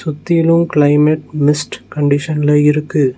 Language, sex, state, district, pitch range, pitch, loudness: Tamil, male, Tamil Nadu, Nilgiris, 145-155 Hz, 150 Hz, -13 LUFS